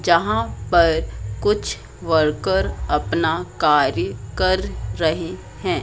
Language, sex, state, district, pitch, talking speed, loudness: Hindi, female, Madhya Pradesh, Katni, 160 Hz, 95 wpm, -20 LUFS